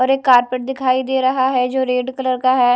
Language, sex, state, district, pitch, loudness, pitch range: Hindi, female, Odisha, Malkangiri, 255 Hz, -17 LUFS, 255-260 Hz